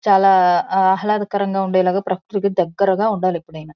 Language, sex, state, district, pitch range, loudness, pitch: Telugu, female, Andhra Pradesh, Guntur, 185-200 Hz, -17 LUFS, 190 Hz